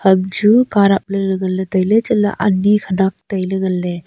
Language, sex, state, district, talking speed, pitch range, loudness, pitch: Wancho, female, Arunachal Pradesh, Longding, 175 wpm, 190-205 Hz, -15 LUFS, 195 Hz